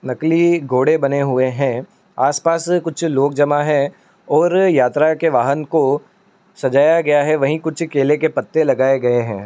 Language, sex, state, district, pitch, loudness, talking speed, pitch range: Hindi, male, Uttar Pradesh, Etah, 145 Hz, -16 LUFS, 165 wpm, 135-165 Hz